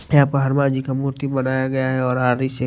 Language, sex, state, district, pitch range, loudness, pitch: Hindi, male, Punjab, Pathankot, 130-140 Hz, -20 LUFS, 130 Hz